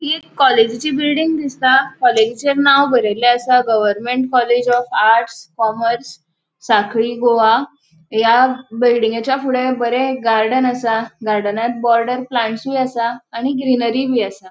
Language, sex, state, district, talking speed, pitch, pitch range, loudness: Konkani, female, Goa, North and South Goa, 125 wpm, 240 Hz, 225-260 Hz, -15 LUFS